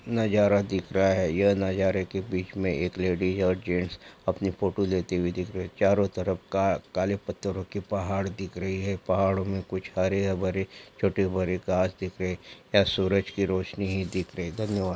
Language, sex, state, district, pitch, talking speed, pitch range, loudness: Hindi, male, Jharkhand, Sahebganj, 95 Hz, 185 wpm, 90-100 Hz, -28 LUFS